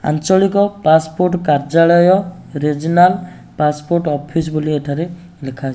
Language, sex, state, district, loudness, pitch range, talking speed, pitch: Odia, male, Odisha, Nuapada, -15 LUFS, 150-180 Hz, 105 wpm, 165 Hz